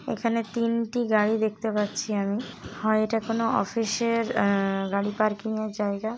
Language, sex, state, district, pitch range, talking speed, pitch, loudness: Bengali, female, West Bengal, Jalpaiguri, 210-230 Hz, 155 wpm, 220 Hz, -26 LUFS